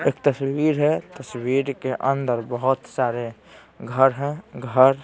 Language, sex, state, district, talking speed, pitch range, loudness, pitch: Hindi, male, Bihar, Patna, 130 wpm, 125-140 Hz, -22 LUFS, 135 Hz